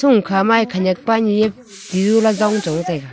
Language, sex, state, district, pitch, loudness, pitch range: Wancho, female, Arunachal Pradesh, Longding, 210 Hz, -16 LUFS, 185-225 Hz